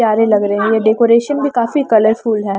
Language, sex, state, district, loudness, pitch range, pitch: Hindi, female, Maharashtra, Washim, -13 LUFS, 215-235 Hz, 225 Hz